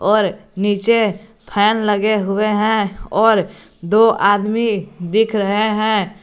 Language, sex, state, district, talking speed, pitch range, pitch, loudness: Hindi, male, Jharkhand, Garhwa, 115 wpm, 200-220 Hz, 210 Hz, -16 LUFS